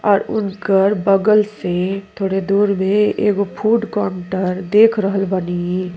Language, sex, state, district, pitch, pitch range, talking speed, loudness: Bhojpuri, female, Uttar Pradesh, Gorakhpur, 195 Hz, 190-210 Hz, 130 wpm, -17 LUFS